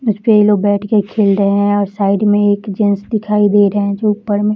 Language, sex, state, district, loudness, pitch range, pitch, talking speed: Hindi, female, Bihar, Saharsa, -13 LUFS, 205-210 Hz, 205 Hz, 275 wpm